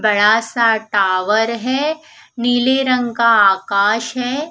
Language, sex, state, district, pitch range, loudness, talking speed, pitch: Hindi, female, Punjab, Fazilka, 215-255 Hz, -15 LUFS, 120 wpm, 230 Hz